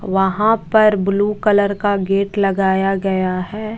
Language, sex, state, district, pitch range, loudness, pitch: Hindi, female, Bihar, Katihar, 195-210 Hz, -16 LUFS, 200 Hz